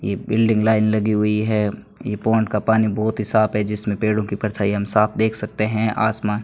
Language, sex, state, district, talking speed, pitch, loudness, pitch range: Hindi, male, Rajasthan, Bikaner, 235 wpm, 110 Hz, -19 LUFS, 105-110 Hz